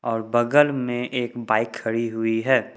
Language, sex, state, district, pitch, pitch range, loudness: Hindi, male, Jharkhand, Ranchi, 120 Hz, 115-125 Hz, -22 LUFS